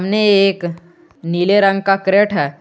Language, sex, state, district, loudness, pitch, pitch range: Hindi, male, Jharkhand, Garhwa, -14 LUFS, 195 Hz, 175-200 Hz